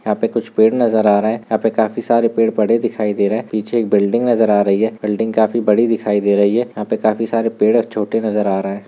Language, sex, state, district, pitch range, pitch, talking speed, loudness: Hindi, male, Chhattisgarh, Korba, 105-115 Hz, 110 Hz, 290 wpm, -16 LUFS